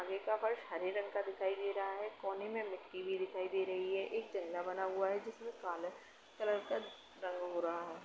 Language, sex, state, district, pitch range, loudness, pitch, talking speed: Hindi, female, Uttar Pradesh, Etah, 185-205 Hz, -40 LUFS, 195 Hz, 230 wpm